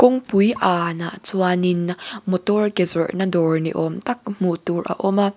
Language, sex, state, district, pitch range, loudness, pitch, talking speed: Mizo, female, Mizoram, Aizawl, 170-205 Hz, -20 LUFS, 185 Hz, 165 wpm